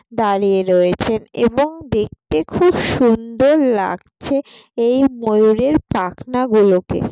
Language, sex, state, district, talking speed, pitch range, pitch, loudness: Bengali, female, West Bengal, Jalpaiguri, 110 wpm, 195-255 Hz, 225 Hz, -16 LUFS